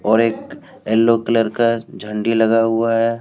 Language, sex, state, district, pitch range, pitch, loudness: Hindi, male, Jharkhand, Deoghar, 110-115 Hz, 115 Hz, -17 LUFS